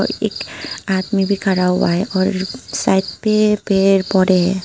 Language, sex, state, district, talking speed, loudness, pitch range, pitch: Hindi, female, Tripura, Unakoti, 155 wpm, -17 LUFS, 185-200 Hz, 190 Hz